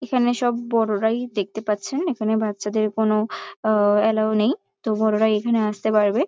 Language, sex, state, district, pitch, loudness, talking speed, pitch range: Bengali, female, West Bengal, North 24 Parganas, 220 Hz, -21 LUFS, 160 wpm, 215-240 Hz